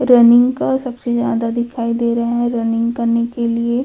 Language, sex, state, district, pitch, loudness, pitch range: Hindi, female, Chhattisgarh, Raipur, 235 Hz, -16 LUFS, 235-240 Hz